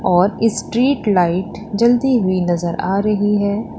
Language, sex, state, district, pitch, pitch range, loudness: Hindi, female, Uttar Pradesh, Lalitpur, 205 Hz, 185-225 Hz, -17 LUFS